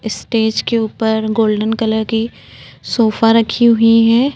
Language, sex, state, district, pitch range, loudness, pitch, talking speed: Hindi, female, Uttar Pradesh, Budaun, 220-230 Hz, -14 LUFS, 225 Hz, 140 wpm